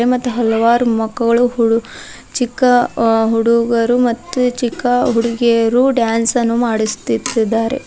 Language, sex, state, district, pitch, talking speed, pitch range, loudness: Kannada, female, Karnataka, Bidar, 235 Hz, 85 wpm, 230-245 Hz, -15 LUFS